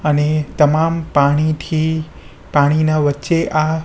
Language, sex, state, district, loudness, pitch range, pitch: Gujarati, male, Gujarat, Gandhinagar, -16 LUFS, 150-160 Hz, 155 Hz